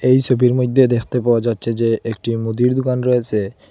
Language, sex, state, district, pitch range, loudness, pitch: Bengali, male, Assam, Hailakandi, 115-125 Hz, -17 LUFS, 120 Hz